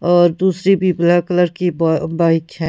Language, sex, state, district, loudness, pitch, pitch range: Hindi, female, Punjab, Pathankot, -15 LUFS, 175 Hz, 165-180 Hz